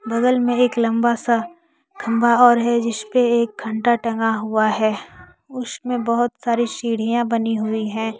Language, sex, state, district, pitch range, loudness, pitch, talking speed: Hindi, female, Jharkhand, Deoghar, 225-245 Hz, -19 LUFS, 235 Hz, 160 wpm